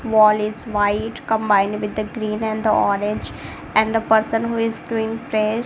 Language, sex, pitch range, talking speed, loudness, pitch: English, female, 210-225 Hz, 170 wpm, -20 LUFS, 220 Hz